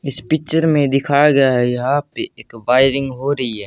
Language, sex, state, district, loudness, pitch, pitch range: Hindi, male, Haryana, Jhajjar, -16 LUFS, 135 Hz, 125-145 Hz